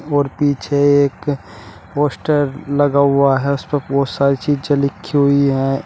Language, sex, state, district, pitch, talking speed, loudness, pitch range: Hindi, male, Uttar Pradesh, Shamli, 140 Hz, 145 wpm, -16 LUFS, 140-145 Hz